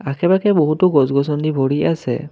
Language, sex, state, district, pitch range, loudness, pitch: Assamese, male, Assam, Kamrup Metropolitan, 140-170 Hz, -16 LUFS, 150 Hz